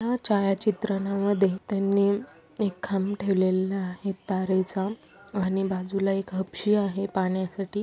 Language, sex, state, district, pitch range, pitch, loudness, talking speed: Marathi, female, Maharashtra, Aurangabad, 190-200 Hz, 195 Hz, -27 LUFS, 105 wpm